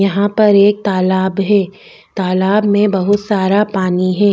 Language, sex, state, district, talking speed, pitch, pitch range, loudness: Hindi, female, Chhattisgarh, Bastar, 150 wpm, 200 Hz, 190-205 Hz, -13 LUFS